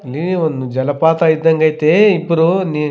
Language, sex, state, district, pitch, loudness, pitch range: Kannada, male, Karnataka, Raichur, 160 Hz, -14 LUFS, 150-170 Hz